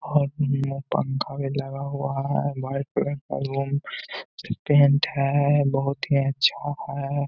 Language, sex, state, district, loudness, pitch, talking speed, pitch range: Hindi, male, Bihar, Gaya, -24 LUFS, 140 Hz, 130 wpm, 135-145 Hz